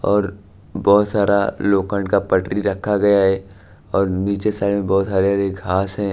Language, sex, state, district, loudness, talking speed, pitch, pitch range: Hindi, male, Bihar, Katihar, -18 LUFS, 165 wpm, 100 Hz, 95-100 Hz